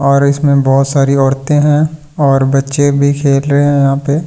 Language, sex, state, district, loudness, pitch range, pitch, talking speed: Hindi, male, Delhi, New Delhi, -11 LUFS, 135-145 Hz, 140 Hz, 225 wpm